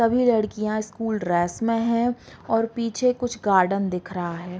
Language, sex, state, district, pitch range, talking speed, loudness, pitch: Hindi, female, Chhattisgarh, Bilaspur, 185-230 Hz, 180 wpm, -23 LUFS, 215 Hz